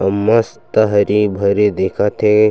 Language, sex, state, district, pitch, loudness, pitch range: Chhattisgarhi, male, Chhattisgarh, Sukma, 105 Hz, -15 LUFS, 100-105 Hz